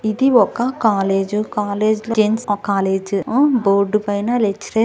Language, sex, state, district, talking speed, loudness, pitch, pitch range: Telugu, female, Andhra Pradesh, Anantapur, 125 wpm, -17 LUFS, 210 Hz, 200-225 Hz